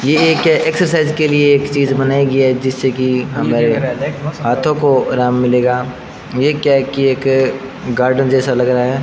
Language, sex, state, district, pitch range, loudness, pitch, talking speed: Hindi, male, Rajasthan, Bikaner, 125-145 Hz, -14 LUFS, 135 Hz, 175 wpm